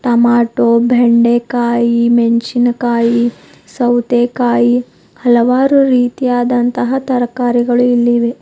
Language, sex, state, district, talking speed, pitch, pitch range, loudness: Kannada, female, Karnataka, Bidar, 65 wpm, 240 Hz, 235-245 Hz, -12 LUFS